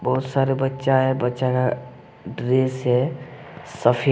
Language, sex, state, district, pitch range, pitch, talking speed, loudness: Hindi, male, Jharkhand, Deoghar, 125-135 Hz, 130 Hz, 130 wpm, -22 LUFS